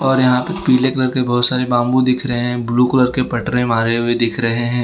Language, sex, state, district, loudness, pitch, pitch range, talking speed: Hindi, male, Gujarat, Valsad, -16 LUFS, 125 Hz, 120-130 Hz, 260 wpm